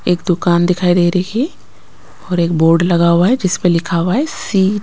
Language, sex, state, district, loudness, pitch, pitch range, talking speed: Hindi, female, Maharashtra, Gondia, -14 LUFS, 175 Hz, 170-190 Hz, 225 wpm